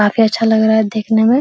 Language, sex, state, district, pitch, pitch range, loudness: Hindi, female, Bihar, Araria, 220 Hz, 220-225 Hz, -13 LUFS